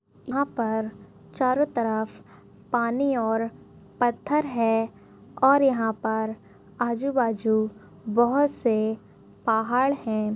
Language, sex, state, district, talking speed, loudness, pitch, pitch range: Hindi, female, Maharashtra, Dhule, 95 wpm, -25 LUFS, 230 Hz, 220-260 Hz